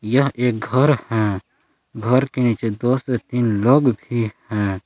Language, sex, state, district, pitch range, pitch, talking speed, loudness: Hindi, male, Jharkhand, Palamu, 110-130 Hz, 120 Hz, 160 wpm, -19 LUFS